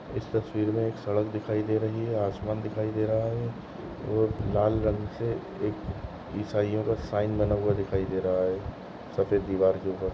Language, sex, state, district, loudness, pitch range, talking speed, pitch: Hindi, male, Goa, North and South Goa, -29 LUFS, 100-110 Hz, 175 wpm, 105 Hz